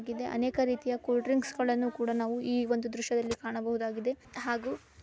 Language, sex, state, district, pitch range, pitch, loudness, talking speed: Kannada, female, Karnataka, Bijapur, 235-250 Hz, 240 Hz, -32 LUFS, 145 wpm